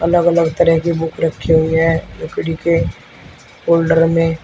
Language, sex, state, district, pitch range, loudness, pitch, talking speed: Hindi, male, Uttar Pradesh, Shamli, 165-170 Hz, -15 LUFS, 165 Hz, 160 wpm